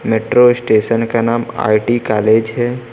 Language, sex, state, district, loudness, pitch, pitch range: Hindi, male, Uttar Pradesh, Lucknow, -14 LUFS, 115 Hz, 110-120 Hz